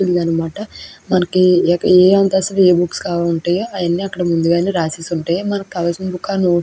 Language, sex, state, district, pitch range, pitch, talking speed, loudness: Telugu, female, Andhra Pradesh, Krishna, 170-190 Hz, 180 Hz, 145 wpm, -16 LUFS